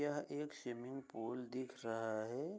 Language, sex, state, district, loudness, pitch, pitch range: Hindi, male, Uttar Pradesh, Budaun, -45 LUFS, 130 Hz, 115-145 Hz